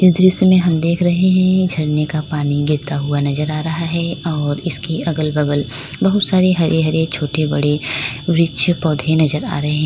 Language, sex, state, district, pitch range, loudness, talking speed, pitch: Hindi, female, Uttar Pradesh, Lalitpur, 150-170 Hz, -16 LUFS, 180 wpm, 160 Hz